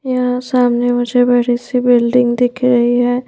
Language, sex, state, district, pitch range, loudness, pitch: Hindi, female, Madhya Pradesh, Bhopal, 245-250 Hz, -14 LUFS, 245 Hz